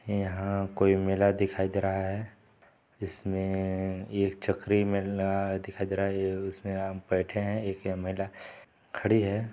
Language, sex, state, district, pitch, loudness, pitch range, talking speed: Hindi, male, Chhattisgarh, Balrampur, 95 Hz, -30 LUFS, 95-100 Hz, 145 wpm